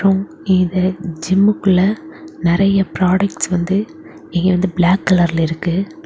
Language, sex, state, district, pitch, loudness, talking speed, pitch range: Tamil, female, Tamil Nadu, Kanyakumari, 185 Hz, -16 LUFS, 100 wpm, 175-195 Hz